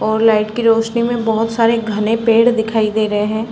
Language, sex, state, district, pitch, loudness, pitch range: Hindi, female, Uttar Pradesh, Varanasi, 225 Hz, -15 LUFS, 215-230 Hz